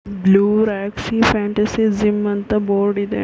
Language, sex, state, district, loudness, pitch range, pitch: Kannada, female, Karnataka, Mysore, -17 LUFS, 200-215 Hz, 210 Hz